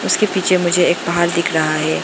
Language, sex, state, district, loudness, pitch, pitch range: Hindi, female, Arunachal Pradesh, Lower Dibang Valley, -16 LUFS, 175 Hz, 160-185 Hz